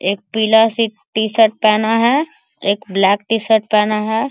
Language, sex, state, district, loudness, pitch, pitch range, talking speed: Hindi, male, Bihar, Bhagalpur, -15 LUFS, 220 Hz, 210-225 Hz, 155 wpm